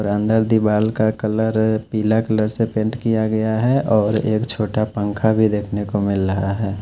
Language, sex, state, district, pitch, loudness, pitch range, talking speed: Hindi, male, Chhattisgarh, Raipur, 110 Hz, -19 LUFS, 105-110 Hz, 195 wpm